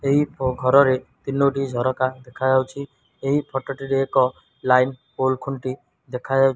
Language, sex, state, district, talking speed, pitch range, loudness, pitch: Odia, male, Odisha, Malkangiri, 130 wpm, 130-135 Hz, -22 LUFS, 135 Hz